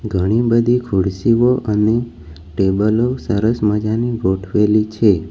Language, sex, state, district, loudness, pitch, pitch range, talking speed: Gujarati, male, Gujarat, Valsad, -16 LUFS, 105 Hz, 95-115 Hz, 100 wpm